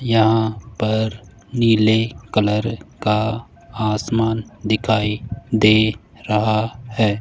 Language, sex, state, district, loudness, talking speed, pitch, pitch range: Hindi, male, Rajasthan, Jaipur, -19 LUFS, 85 wpm, 110 Hz, 110-115 Hz